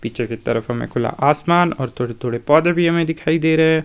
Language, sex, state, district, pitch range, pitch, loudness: Hindi, male, Himachal Pradesh, Shimla, 120-165 Hz, 150 Hz, -18 LUFS